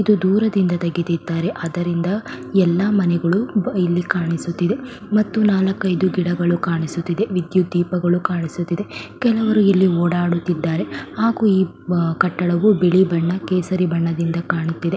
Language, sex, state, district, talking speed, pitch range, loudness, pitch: Kannada, female, Karnataka, Belgaum, 110 wpm, 170-195 Hz, -19 LUFS, 180 Hz